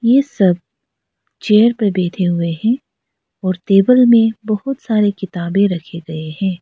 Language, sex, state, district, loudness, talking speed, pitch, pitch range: Hindi, female, Arunachal Pradesh, Lower Dibang Valley, -15 LUFS, 145 wpm, 195 Hz, 175-225 Hz